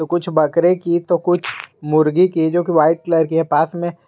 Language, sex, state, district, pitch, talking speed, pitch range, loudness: Hindi, male, Jharkhand, Garhwa, 170 Hz, 205 wpm, 160-175 Hz, -16 LUFS